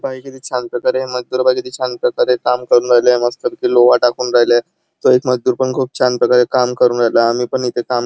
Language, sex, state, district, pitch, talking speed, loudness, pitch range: Marathi, male, Maharashtra, Chandrapur, 125 Hz, 185 wpm, -15 LUFS, 120-130 Hz